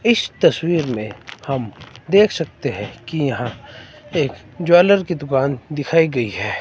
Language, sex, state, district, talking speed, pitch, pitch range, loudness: Hindi, male, Himachal Pradesh, Shimla, 145 wpm, 140 Hz, 120-165 Hz, -19 LUFS